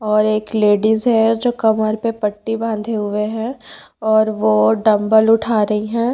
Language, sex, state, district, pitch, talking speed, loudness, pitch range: Hindi, female, Bihar, Patna, 220 Hz, 165 wpm, -16 LUFS, 210-225 Hz